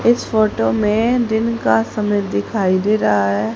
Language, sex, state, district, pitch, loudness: Hindi, female, Haryana, Rohtak, 205 Hz, -17 LUFS